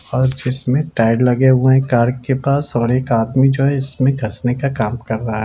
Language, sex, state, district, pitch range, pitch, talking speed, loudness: Hindi, male, Bihar, Lakhisarai, 120-135 Hz, 130 Hz, 240 wpm, -16 LUFS